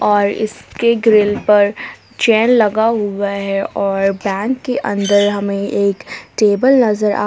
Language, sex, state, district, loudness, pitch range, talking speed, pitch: Hindi, female, Jharkhand, Palamu, -15 LUFS, 200-225 Hz, 140 wpm, 205 Hz